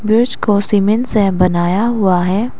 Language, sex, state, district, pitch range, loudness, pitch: Hindi, female, Arunachal Pradesh, Lower Dibang Valley, 185-220 Hz, -14 LUFS, 205 Hz